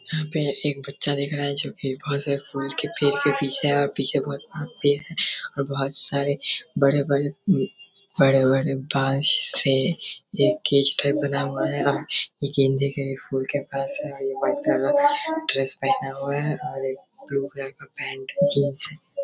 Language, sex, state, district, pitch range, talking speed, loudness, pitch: Hindi, male, Bihar, Darbhanga, 135-150 Hz, 170 wpm, -22 LUFS, 140 Hz